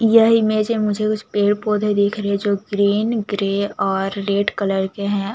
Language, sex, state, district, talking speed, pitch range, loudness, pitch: Hindi, female, Chhattisgarh, Jashpur, 190 wpm, 200-215 Hz, -19 LUFS, 205 Hz